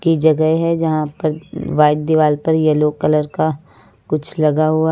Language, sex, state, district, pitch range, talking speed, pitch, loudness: Hindi, female, Uttar Pradesh, Lucknow, 150-160 Hz, 170 wpm, 155 Hz, -16 LUFS